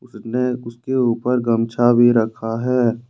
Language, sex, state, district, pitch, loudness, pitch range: Hindi, male, Jharkhand, Ranchi, 120 Hz, -18 LUFS, 115-125 Hz